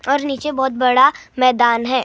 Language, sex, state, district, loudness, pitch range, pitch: Hindi, male, Maharashtra, Gondia, -16 LUFS, 250-280 Hz, 255 Hz